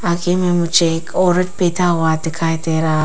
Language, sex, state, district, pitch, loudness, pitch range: Hindi, female, Arunachal Pradesh, Papum Pare, 170 Hz, -16 LUFS, 165-180 Hz